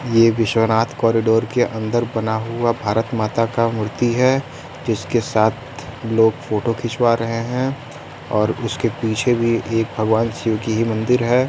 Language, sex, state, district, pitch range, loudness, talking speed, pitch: Hindi, male, Uttar Pradesh, Varanasi, 110-120 Hz, -19 LUFS, 155 wpm, 115 Hz